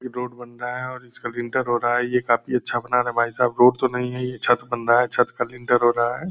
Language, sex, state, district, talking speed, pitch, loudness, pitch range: Hindi, male, Bihar, Purnia, 315 wpm, 125 Hz, -21 LUFS, 120-125 Hz